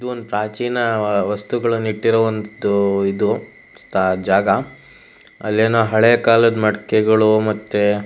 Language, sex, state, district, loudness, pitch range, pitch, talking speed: Kannada, male, Karnataka, Shimoga, -17 LUFS, 105-115 Hz, 110 Hz, 90 wpm